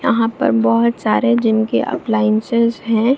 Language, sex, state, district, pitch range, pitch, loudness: Hindi, female, Bihar, Jamui, 215-235 Hz, 225 Hz, -16 LUFS